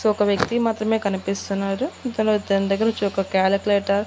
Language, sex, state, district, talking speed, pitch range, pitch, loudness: Telugu, female, Andhra Pradesh, Annamaya, 175 wpm, 195-220 Hz, 205 Hz, -22 LUFS